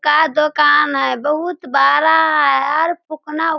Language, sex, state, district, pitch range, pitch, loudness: Hindi, female, Bihar, Sitamarhi, 290-315 Hz, 300 Hz, -14 LUFS